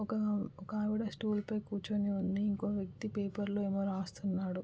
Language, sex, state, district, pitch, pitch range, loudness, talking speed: Telugu, female, Andhra Pradesh, Guntur, 205 Hz, 195-210 Hz, -36 LUFS, 195 wpm